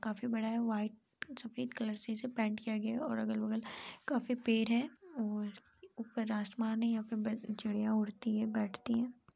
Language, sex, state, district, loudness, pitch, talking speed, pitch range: Hindi, female, Chhattisgarh, Raigarh, -37 LUFS, 225 Hz, 185 wpm, 215-235 Hz